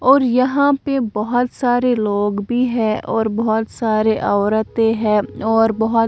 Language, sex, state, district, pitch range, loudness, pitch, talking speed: Hindi, female, Bihar, Katihar, 215-245 Hz, -17 LUFS, 225 Hz, 160 wpm